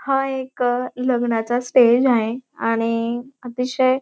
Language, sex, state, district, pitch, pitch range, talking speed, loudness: Marathi, female, Maharashtra, Dhule, 250 Hz, 235-255 Hz, 120 wpm, -20 LUFS